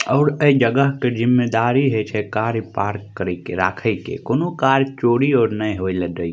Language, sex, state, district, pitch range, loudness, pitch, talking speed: Maithili, male, Bihar, Madhepura, 105-135 Hz, -19 LUFS, 120 Hz, 210 wpm